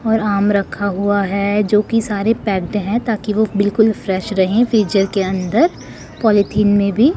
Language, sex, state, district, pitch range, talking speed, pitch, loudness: Hindi, female, Chandigarh, Chandigarh, 200-220 Hz, 165 wpm, 205 Hz, -16 LUFS